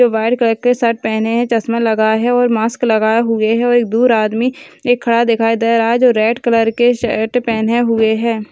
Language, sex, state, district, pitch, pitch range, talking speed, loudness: Hindi, female, Rajasthan, Churu, 230 Hz, 225-240 Hz, 230 wpm, -14 LUFS